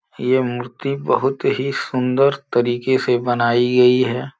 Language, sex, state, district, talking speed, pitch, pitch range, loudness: Hindi, male, Uttar Pradesh, Gorakhpur, 135 wpm, 125 Hz, 120-135 Hz, -18 LUFS